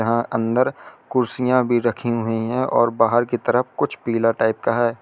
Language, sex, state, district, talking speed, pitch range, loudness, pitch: Hindi, male, Uttar Pradesh, Lalitpur, 180 wpm, 115-120 Hz, -20 LUFS, 120 Hz